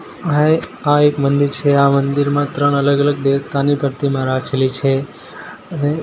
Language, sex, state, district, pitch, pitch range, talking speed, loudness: Gujarati, male, Gujarat, Gandhinagar, 140 Hz, 140-145 Hz, 160 wpm, -16 LUFS